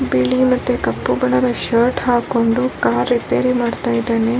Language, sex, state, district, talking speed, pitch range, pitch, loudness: Kannada, female, Karnataka, Raichur, 135 wpm, 225-250 Hz, 235 Hz, -17 LUFS